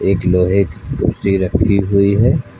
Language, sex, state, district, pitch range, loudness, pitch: Hindi, male, Uttar Pradesh, Lucknow, 95-100 Hz, -15 LUFS, 100 Hz